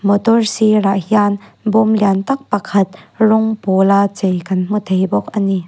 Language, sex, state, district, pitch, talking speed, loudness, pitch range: Mizo, female, Mizoram, Aizawl, 200 Hz, 170 wpm, -15 LUFS, 190-215 Hz